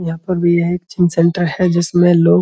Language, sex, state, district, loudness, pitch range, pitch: Hindi, male, Uttar Pradesh, Budaun, -15 LUFS, 170-175 Hz, 175 Hz